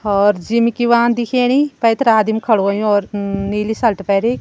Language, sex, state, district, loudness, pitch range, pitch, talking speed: Garhwali, female, Uttarakhand, Tehri Garhwal, -15 LUFS, 205-235 Hz, 220 Hz, 175 wpm